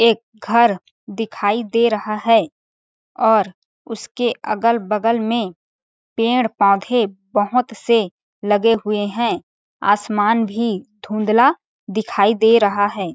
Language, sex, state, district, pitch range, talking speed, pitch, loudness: Hindi, female, Chhattisgarh, Balrampur, 205-230 Hz, 100 wpm, 220 Hz, -18 LUFS